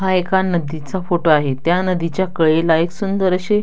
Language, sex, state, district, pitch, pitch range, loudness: Marathi, female, Maharashtra, Dhule, 175 Hz, 160-190 Hz, -17 LUFS